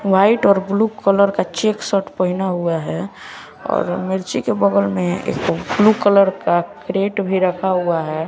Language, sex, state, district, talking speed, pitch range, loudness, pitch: Hindi, male, Bihar, West Champaran, 175 wpm, 180-200 Hz, -17 LUFS, 190 Hz